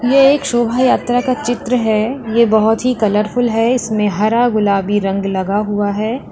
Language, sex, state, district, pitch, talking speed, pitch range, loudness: Hindi, female, Uttar Pradesh, Lalitpur, 225 Hz, 180 wpm, 210-245 Hz, -15 LUFS